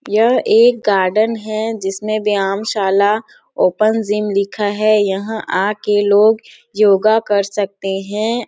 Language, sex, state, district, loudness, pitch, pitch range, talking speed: Hindi, female, Chhattisgarh, Sarguja, -15 LUFS, 210 Hz, 200-220 Hz, 135 wpm